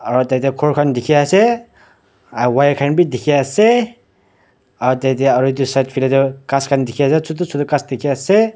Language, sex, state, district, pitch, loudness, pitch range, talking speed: Nagamese, male, Nagaland, Dimapur, 140 Hz, -15 LUFS, 130-150 Hz, 210 wpm